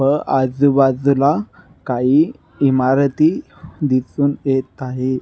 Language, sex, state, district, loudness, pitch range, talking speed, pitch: Marathi, male, Maharashtra, Nagpur, -17 LUFS, 130-145 Hz, 90 wpm, 135 Hz